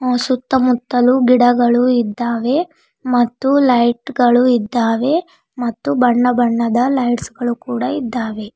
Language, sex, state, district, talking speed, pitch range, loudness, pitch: Kannada, female, Karnataka, Bidar, 100 wpm, 240-255 Hz, -15 LUFS, 245 Hz